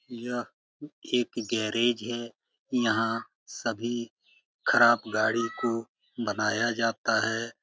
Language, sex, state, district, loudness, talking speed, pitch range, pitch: Hindi, male, Bihar, Jamui, -28 LUFS, 95 wpm, 115-120 Hz, 115 Hz